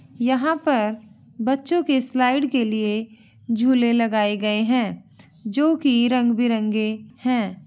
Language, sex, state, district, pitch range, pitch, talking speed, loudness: Hindi, female, Bihar, Begusarai, 215-260 Hz, 235 Hz, 115 wpm, -21 LUFS